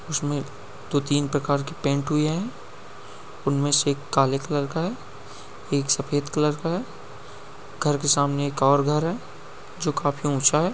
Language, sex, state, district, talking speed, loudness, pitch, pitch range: Hindi, male, Uttar Pradesh, Etah, 175 wpm, -24 LUFS, 145 Hz, 140-150 Hz